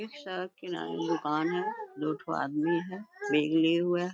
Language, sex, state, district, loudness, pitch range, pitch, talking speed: Hindi, female, Bihar, Bhagalpur, -31 LUFS, 160-185 Hz, 175 Hz, 190 wpm